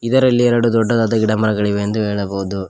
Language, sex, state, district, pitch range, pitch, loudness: Kannada, male, Karnataka, Koppal, 100-115 Hz, 110 Hz, -16 LUFS